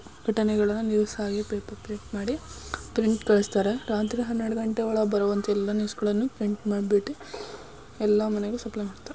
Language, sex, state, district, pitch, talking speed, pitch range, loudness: Kannada, female, Karnataka, Dharwad, 210 Hz, 130 wpm, 205-225 Hz, -27 LUFS